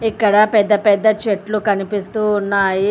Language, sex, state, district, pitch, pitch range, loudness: Telugu, female, Telangana, Hyderabad, 210 Hz, 200-215 Hz, -16 LUFS